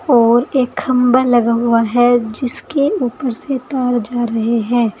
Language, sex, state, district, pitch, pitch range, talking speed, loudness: Hindi, female, Uttar Pradesh, Saharanpur, 245 Hz, 235-255 Hz, 155 wpm, -15 LUFS